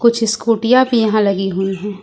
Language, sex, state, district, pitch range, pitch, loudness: Hindi, female, Jharkhand, Ranchi, 195-230 Hz, 215 Hz, -15 LUFS